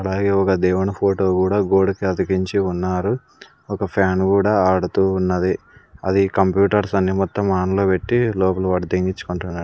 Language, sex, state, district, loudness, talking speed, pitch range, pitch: Telugu, male, Andhra Pradesh, Sri Satya Sai, -19 LUFS, 145 wpm, 95-100 Hz, 95 Hz